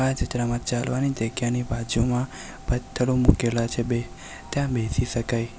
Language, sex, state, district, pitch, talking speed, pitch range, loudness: Gujarati, male, Gujarat, Valsad, 120 Hz, 130 wpm, 115-125 Hz, -25 LUFS